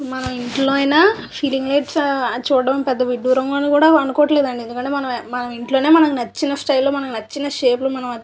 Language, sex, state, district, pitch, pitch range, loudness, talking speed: Telugu, female, Andhra Pradesh, Visakhapatnam, 270 Hz, 250-285 Hz, -17 LUFS, 140 wpm